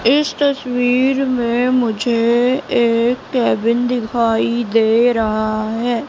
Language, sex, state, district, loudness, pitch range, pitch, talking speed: Hindi, female, Madhya Pradesh, Katni, -16 LUFS, 230-250 Hz, 240 Hz, 100 wpm